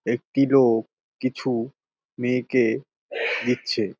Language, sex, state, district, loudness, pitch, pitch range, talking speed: Bengali, male, West Bengal, Dakshin Dinajpur, -23 LUFS, 125 Hz, 120-130 Hz, 75 wpm